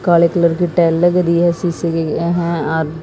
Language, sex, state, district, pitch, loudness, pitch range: Hindi, female, Haryana, Jhajjar, 170 Hz, -15 LUFS, 165-175 Hz